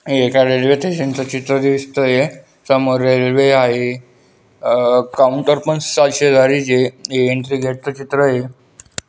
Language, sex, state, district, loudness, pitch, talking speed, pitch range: Marathi, male, Maharashtra, Dhule, -15 LUFS, 130 Hz, 105 wpm, 125-140 Hz